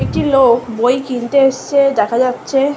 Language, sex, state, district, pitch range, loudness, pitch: Bengali, female, West Bengal, Malda, 245-275 Hz, -14 LUFS, 265 Hz